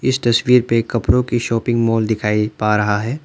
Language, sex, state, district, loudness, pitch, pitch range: Hindi, male, Arunachal Pradesh, Lower Dibang Valley, -17 LUFS, 115 Hz, 110-125 Hz